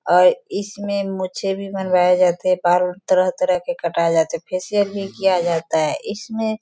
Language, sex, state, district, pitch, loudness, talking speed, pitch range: Hindi, female, Bihar, Sitamarhi, 185 Hz, -19 LUFS, 180 wpm, 180-200 Hz